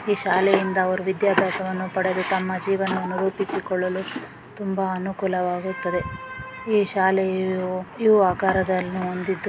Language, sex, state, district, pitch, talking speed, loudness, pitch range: Kannada, female, Karnataka, Dakshina Kannada, 190 Hz, 95 wpm, -23 LUFS, 185-195 Hz